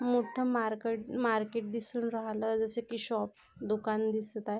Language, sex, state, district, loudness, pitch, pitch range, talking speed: Marathi, female, Maharashtra, Aurangabad, -34 LUFS, 225 Hz, 220-235 Hz, 145 wpm